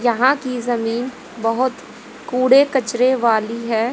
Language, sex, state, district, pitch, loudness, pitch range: Hindi, female, Haryana, Jhajjar, 245 Hz, -18 LUFS, 230-260 Hz